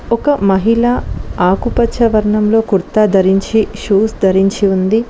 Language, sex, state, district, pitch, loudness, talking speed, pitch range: Telugu, female, Telangana, Mahabubabad, 210 Hz, -13 LUFS, 105 wpm, 195-225 Hz